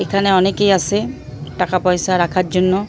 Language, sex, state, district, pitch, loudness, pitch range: Bengali, female, West Bengal, Purulia, 185 Hz, -16 LUFS, 180-195 Hz